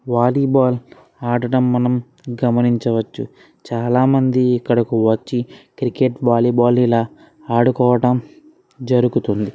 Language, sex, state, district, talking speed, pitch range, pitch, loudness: Telugu, male, Andhra Pradesh, Srikakulam, 80 wpm, 120-125 Hz, 125 Hz, -17 LUFS